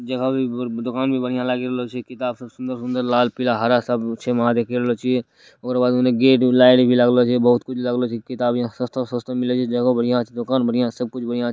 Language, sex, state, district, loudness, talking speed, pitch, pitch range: Hindi, male, Bihar, Purnia, -20 LUFS, 235 wpm, 125 Hz, 120-125 Hz